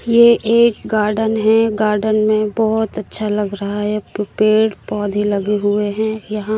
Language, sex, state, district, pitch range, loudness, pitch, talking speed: Hindi, female, Madhya Pradesh, Katni, 210-220 Hz, -16 LUFS, 215 Hz, 155 wpm